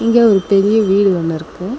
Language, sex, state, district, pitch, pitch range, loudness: Tamil, female, Tamil Nadu, Chennai, 200 Hz, 185-220 Hz, -13 LUFS